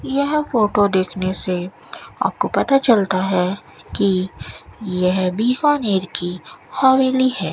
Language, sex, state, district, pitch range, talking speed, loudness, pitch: Hindi, female, Rajasthan, Bikaner, 185-260 Hz, 110 wpm, -18 LUFS, 195 Hz